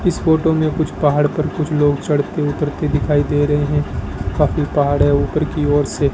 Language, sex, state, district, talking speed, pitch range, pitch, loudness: Hindi, male, Rajasthan, Bikaner, 215 wpm, 145-155 Hz, 145 Hz, -17 LUFS